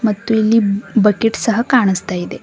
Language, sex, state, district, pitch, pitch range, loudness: Kannada, female, Karnataka, Bidar, 215 Hz, 200-225 Hz, -15 LUFS